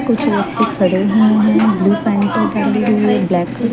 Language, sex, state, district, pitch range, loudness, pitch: Hindi, female, Chandigarh, Chandigarh, 205-225 Hz, -14 LUFS, 215 Hz